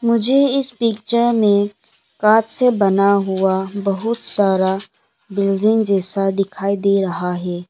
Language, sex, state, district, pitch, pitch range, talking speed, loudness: Hindi, female, Arunachal Pradesh, Longding, 200 Hz, 195-225 Hz, 125 wpm, -17 LUFS